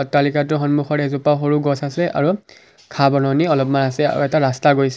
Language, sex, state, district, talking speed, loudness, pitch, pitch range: Assamese, male, Assam, Kamrup Metropolitan, 180 wpm, -18 LUFS, 145 Hz, 140-150 Hz